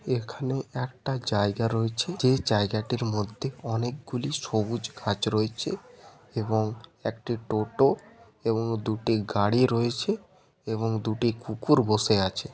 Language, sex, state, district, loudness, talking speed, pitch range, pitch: Bengali, male, West Bengal, Paschim Medinipur, -27 LUFS, 110 wpm, 110-130 Hz, 115 Hz